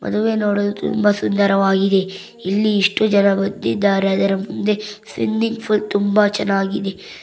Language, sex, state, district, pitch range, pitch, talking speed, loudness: Kannada, female, Karnataka, Bangalore, 195-210 Hz, 200 Hz, 115 wpm, -18 LUFS